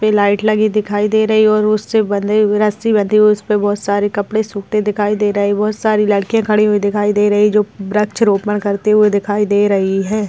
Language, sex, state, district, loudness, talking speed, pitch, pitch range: Hindi, female, Rajasthan, Churu, -14 LUFS, 245 wpm, 210 Hz, 205-215 Hz